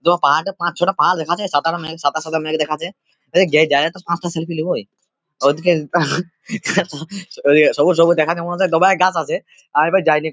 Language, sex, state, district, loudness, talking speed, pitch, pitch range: Bengali, male, West Bengal, Purulia, -17 LUFS, 135 wpm, 170 Hz, 155-180 Hz